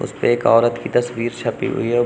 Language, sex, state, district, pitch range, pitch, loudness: Hindi, male, Uttar Pradesh, Lucknow, 115-120 Hz, 120 Hz, -18 LUFS